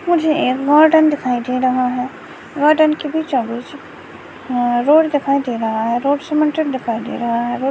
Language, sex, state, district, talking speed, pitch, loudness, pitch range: Hindi, female, West Bengal, Dakshin Dinajpur, 180 wpm, 265 Hz, -16 LUFS, 245-305 Hz